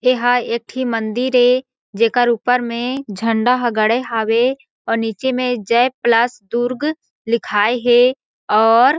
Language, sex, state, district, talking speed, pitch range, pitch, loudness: Chhattisgarhi, female, Chhattisgarh, Jashpur, 140 wpm, 230-255 Hz, 240 Hz, -17 LUFS